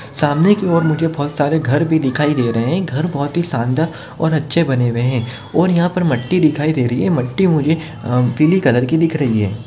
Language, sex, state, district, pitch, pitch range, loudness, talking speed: Hindi, male, Maharashtra, Chandrapur, 150 Hz, 125-165 Hz, -16 LUFS, 225 wpm